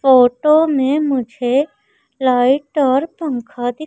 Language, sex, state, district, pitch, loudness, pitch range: Hindi, female, Madhya Pradesh, Umaria, 275 Hz, -16 LUFS, 250-305 Hz